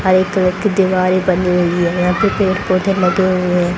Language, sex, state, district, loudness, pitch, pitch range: Hindi, female, Haryana, Rohtak, -15 LUFS, 185 Hz, 180-190 Hz